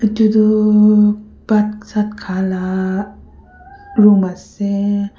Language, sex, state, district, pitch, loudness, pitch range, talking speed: Nagamese, female, Nagaland, Kohima, 210 Hz, -15 LUFS, 200-215 Hz, 70 wpm